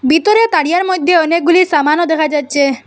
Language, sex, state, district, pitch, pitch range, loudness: Bengali, female, Assam, Hailakandi, 325 Hz, 295-355 Hz, -12 LUFS